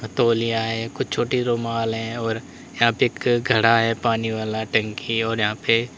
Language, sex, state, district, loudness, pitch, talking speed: Hindi, male, Uttar Pradesh, Lalitpur, -22 LUFS, 115 Hz, 200 wpm